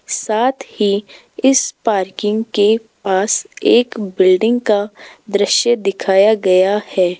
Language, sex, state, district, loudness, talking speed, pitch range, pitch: Hindi, female, Rajasthan, Jaipur, -15 LUFS, 110 wpm, 195-235 Hz, 210 Hz